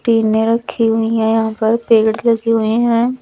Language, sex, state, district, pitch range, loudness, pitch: Hindi, female, Chandigarh, Chandigarh, 220-230 Hz, -15 LUFS, 225 Hz